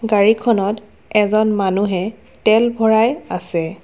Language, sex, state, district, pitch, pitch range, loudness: Assamese, female, Assam, Kamrup Metropolitan, 215 Hz, 200-225 Hz, -17 LUFS